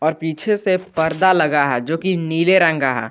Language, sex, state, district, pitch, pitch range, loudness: Hindi, male, Jharkhand, Garhwa, 160 Hz, 150-185 Hz, -17 LUFS